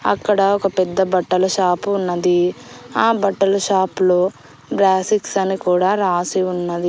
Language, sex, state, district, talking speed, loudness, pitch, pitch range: Telugu, female, Andhra Pradesh, Annamaya, 120 wpm, -18 LUFS, 190 Hz, 180-195 Hz